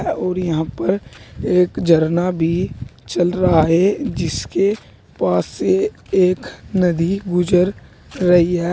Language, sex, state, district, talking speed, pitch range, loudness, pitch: Hindi, male, Uttar Pradesh, Saharanpur, 115 wpm, 165-185 Hz, -18 LUFS, 180 Hz